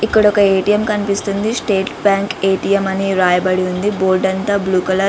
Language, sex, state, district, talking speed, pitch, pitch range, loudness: Telugu, female, Andhra Pradesh, Visakhapatnam, 165 wpm, 195 Hz, 190-205 Hz, -15 LUFS